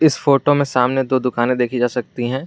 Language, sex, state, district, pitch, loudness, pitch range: Hindi, male, Jharkhand, Garhwa, 125 Hz, -17 LUFS, 125-140 Hz